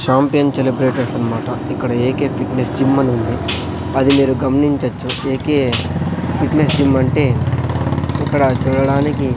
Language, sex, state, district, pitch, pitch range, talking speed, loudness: Telugu, male, Andhra Pradesh, Sri Satya Sai, 130 Hz, 125-140 Hz, 130 wpm, -16 LUFS